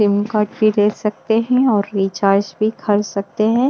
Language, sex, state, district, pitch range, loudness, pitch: Hindi, female, Bihar, West Champaran, 205-220 Hz, -17 LUFS, 210 Hz